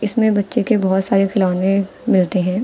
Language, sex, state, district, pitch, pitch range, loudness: Hindi, female, Uttar Pradesh, Lucknow, 195 Hz, 190-215 Hz, -17 LUFS